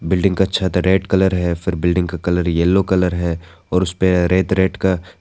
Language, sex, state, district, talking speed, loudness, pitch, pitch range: Hindi, male, Arunachal Pradesh, Lower Dibang Valley, 220 wpm, -17 LUFS, 90 Hz, 90-95 Hz